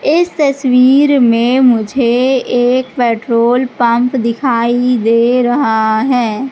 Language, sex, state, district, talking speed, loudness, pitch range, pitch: Hindi, female, Madhya Pradesh, Katni, 100 wpm, -12 LUFS, 235-260 Hz, 245 Hz